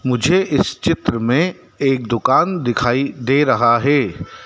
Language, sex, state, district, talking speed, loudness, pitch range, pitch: Hindi, male, Madhya Pradesh, Dhar, 135 wpm, -17 LUFS, 120-145 Hz, 130 Hz